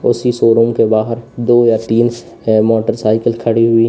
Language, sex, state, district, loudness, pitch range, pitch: Hindi, male, Uttar Pradesh, Lalitpur, -13 LUFS, 115-120 Hz, 115 Hz